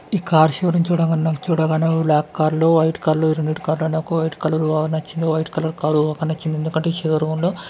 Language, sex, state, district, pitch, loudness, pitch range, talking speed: Telugu, male, Andhra Pradesh, Guntur, 160 Hz, -19 LUFS, 155-165 Hz, 130 wpm